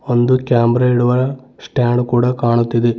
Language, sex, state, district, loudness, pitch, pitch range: Kannada, male, Karnataka, Bidar, -15 LUFS, 120 Hz, 120-125 Hz